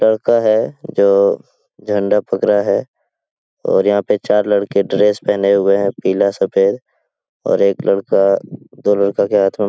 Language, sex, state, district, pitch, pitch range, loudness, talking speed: Hindi, male, Bihar, Jahanabad, 100 Hz, 100-105 Hz, -15 LUFS, 165 wpm